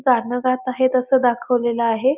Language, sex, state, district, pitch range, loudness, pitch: Marathi, female, Maharashtra, Pune, 240-255 Hz, -19 LUFS, 250 Hz